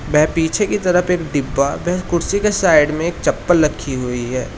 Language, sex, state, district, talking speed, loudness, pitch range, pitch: Hindi, male, Uttar Pradesh, Shamli, 210 wpm, -17 LUFS, 140-180 Hz, 165 Hz